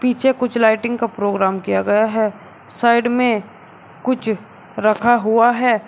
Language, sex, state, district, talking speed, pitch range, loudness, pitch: Hindi, male, Uttar Pradesh, Shamli, 145 wpm, 215-240 Hz, -17 LUFS, 225 Hz